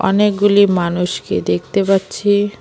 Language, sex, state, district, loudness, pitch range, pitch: Bengali, female, West Bengal, Alipurduar, -15 LUFS, 175-205 Hz, 195 Hz